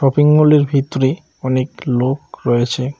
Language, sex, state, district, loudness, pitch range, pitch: Bengali, male, West Bengal, Cooch Behar, -16 LUFS, 130-150 Hz, 135 Hz